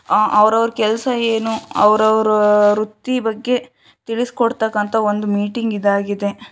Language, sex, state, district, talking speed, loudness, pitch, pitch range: Kannada, female, Karnataka, Shimoga, 100 wpm, -17 LUFS, 220 Hz, 210-230 Hz